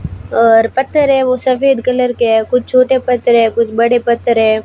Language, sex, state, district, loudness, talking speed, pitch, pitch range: Hindi, female, Rajasthan, Barmer, -12 LUFS, 205 wpm, 245 Hz, 230-255 Hz